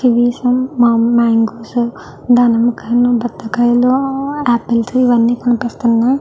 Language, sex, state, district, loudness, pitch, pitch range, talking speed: Telugu, female, Andhra Pradesh, Chittoor, -14 LUFS, 240 Hz, 235-245 Hz, 95 wpm